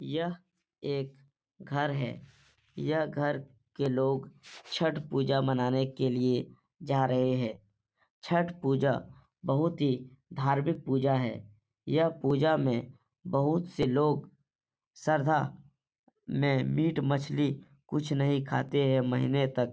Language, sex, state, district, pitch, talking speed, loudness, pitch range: Hindi, male, Bihar, Supaul, 140 Hz, 120 wpm, -30 LUFS, 130-150 Hz